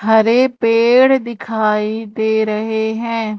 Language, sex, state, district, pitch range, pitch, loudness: Hindi, female, Madhya Pradesh, Umaria, 220-230 Hz, 220 Hz, -15 LUFS